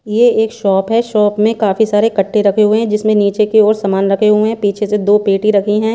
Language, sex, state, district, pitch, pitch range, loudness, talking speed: Hindi, female, Haryana, Charkhi Dadri, 210 Hz, 205-220 Hz, -13 LUFS, 250 wpm